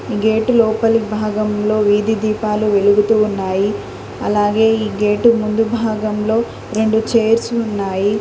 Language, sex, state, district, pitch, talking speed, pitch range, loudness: Telugu, female, Telangana, Mahabubabad, 215 Hz, 115 wpm, 210-225 Hz, -16 LUFS